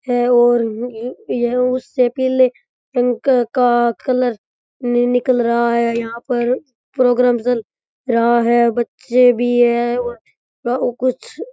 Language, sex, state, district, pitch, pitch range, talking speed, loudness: Rajasthani, male, Rajasthan, Churu, 245 Hz, 240-250 Hz, 110 wpm, -16 LUFS